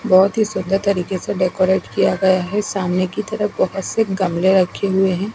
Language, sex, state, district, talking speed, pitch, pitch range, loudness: Hindi, female, Punjab, Fazilka, 200 wpm, 190 Hz, 185-200 Hz, -18 LUFS